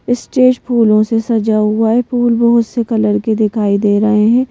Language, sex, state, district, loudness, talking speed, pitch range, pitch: Hindi, female, Madhya Pradesh, Bhopal, -13 LUFS, 200 wpm, 215-240 Hz, 225 Hz